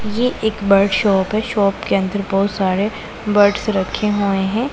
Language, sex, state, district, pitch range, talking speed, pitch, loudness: Hindi, female, Punjab, Pathankot, 195-215 Hz, 180 wpm, 200 Hz, -17 LUFS